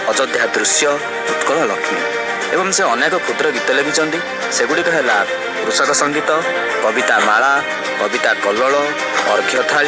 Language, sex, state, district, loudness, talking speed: Odia, male, Odisha, Malkangiri, -15 LUFS, 115 wpm